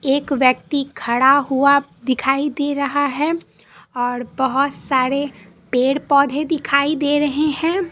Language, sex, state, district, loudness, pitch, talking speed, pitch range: Hindi, female, Bihar, Katihar, -18 LUFS, 280 Hz, 130 wpm, 255-290 Hz